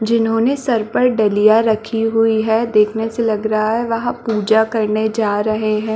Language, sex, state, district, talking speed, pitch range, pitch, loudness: Hindi, female, Chhattisgarh, Balrampur, 180 wpm, 215-230 Hz, 220 Hz, -16 LUFS